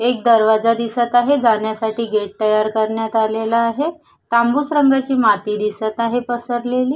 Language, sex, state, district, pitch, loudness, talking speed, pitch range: Marathi, female, Maharashtra, Sindhudurg, 230 Hz, -17 LUFS, 140 wpm, 220-245 Hz